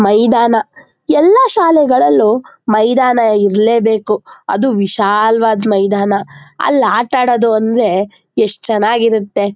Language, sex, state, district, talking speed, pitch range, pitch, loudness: Kannada, female, Karnataka, Mysore, 90 wpm, 205-245 Hz, 220 Hz, -12 LUFS